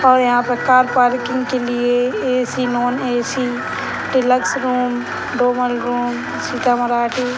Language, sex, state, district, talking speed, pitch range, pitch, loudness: Hindi, female, Bihar, Sitamarhi, 140 wpm, 245-255 Hz, 245 Hz, -17 LUFS